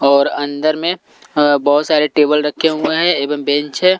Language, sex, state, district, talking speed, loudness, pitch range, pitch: Hindi, male, Delhi, New Delhi, 180 wpm, -15 LUFS, 145-160 Hz, 150 Hz